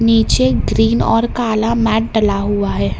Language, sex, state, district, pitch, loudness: Hindi, male, Karnataka, Bangalore, 205 Hz, -15 LUFS